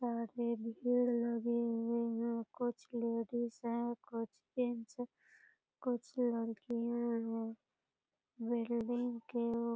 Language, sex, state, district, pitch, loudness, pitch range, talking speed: Hindi, female, Bihar, Purnia, 235 Hz, -39 LUFS, 230-240 Hz, 75 wpm